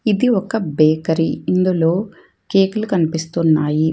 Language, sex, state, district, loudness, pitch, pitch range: Telugu, female, Telangana, Hyderabad, -17 LUFS, 170 Hz, 160-195 Hz